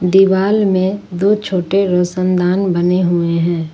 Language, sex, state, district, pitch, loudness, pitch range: Hindi, female, Jharkhand, Ranchi, 185 Hz, -14 LUFS, 175-195 Hz